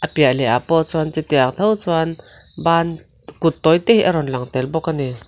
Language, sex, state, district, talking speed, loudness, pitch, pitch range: Mizo, female, Mizoram, Aizawl, 215 wpm, -18 LUFS, 160 Hz, 130-165 Hz